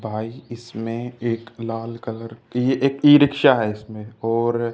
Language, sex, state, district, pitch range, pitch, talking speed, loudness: Hindi, male, Haryana, Jhajjar, 115-125 Hz, 115 Hz, 150 wpm, -20 LUFS